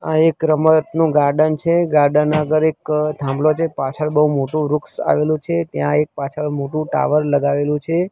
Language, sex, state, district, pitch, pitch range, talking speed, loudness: Gujarati, male, Gujarat, Gandhinagar, 150 Hz, 145-155 Hz, 170 wpm, -17 LUFS